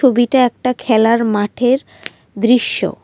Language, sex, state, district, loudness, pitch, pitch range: Bengali, female, Assam, Kamrup Metropolitan, -15 LUFS, 245 Hz, 230-250 Hz